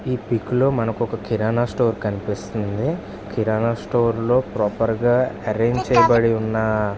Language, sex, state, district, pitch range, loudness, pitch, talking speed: Telugu, male, Andhra Pradesh, Visakhapatnam, 110-120 Hz, -20 LUFS, 115 Hz, 145 wpm